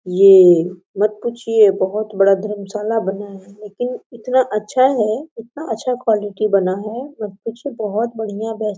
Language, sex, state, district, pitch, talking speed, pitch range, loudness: Hindi, female, Jharkhand, Sahebganj, 215 Hz, 150 wpm, 200-230 Hz, -17 LUFS